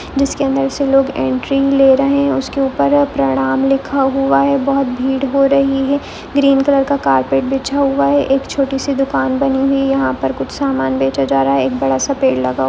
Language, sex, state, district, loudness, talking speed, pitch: Hindi, female, Goa, North and South Goa, -15 LUFS, 215 wpm, 270 Hz